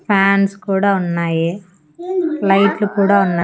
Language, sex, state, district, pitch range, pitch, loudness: Telugu, female, Andhra Pradesh, Annamaya, 180-205 Hz, 195 Hz, -16 LUFS